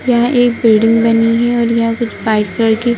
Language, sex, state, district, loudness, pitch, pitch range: Hindi, female, Bihar, Gaya, -12 LUFS, 230 Hz, 225-240 Hz